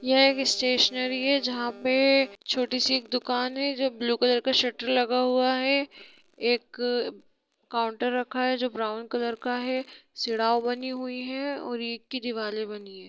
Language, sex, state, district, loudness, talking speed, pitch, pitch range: Hindi, female, Bihar, Sitamarhi, -26 LUFS, 175 wpm, 250 Hz, 240-260 Hz